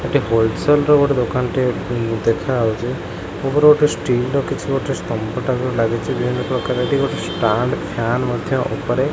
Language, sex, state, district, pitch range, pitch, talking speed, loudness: Odia, male, Odisha, Khordha, 115-140 Hz, 125 Hz, 120 wpm, -18 LUFS